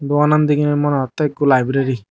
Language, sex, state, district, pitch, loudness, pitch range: Chakma, male, Tripura, Dhalai, 145 Hz, -16 LUFS, 135-150 Hz